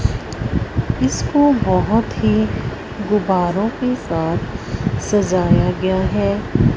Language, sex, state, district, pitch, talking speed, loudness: Hindi, female, Punjab, Fazilka, 170 Hz, 80 wpm, -18 LUFS